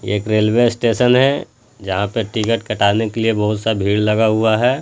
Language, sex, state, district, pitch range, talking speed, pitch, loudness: Hindi, male, Bihar, Jahanabad, 105-120 Hz, 200 wpm, 110 Hz, -16 LUFS